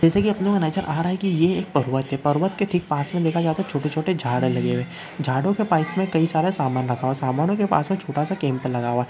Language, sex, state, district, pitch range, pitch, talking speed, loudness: Hindi, male, Uttarakhand, Uttarkashi, 135-190 Hz, 160 Hz, 310 wpm, -22 LUFS